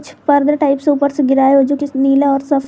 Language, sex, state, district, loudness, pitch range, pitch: Hindi, female, Jharkhand, Garhwa, -13 LUFS, 275-285 Hz, 280 Hz